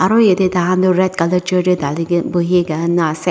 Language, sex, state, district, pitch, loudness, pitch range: Nagamese, female, Nagaland, Dimapur, 180 Hz, -15 LUFS, 170-185 Hz